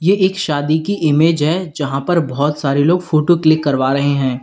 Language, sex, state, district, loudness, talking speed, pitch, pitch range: Hindi, male, Uttar Pradesh, Lalitpur, -15 LUFS, 215 wpm, 155 Hz, 140-170 Hz